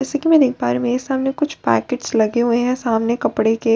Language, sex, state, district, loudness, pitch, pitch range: Hindi, female, Bihar, Katihar, -18 LUFS, 245 Hz, 225-270 Hz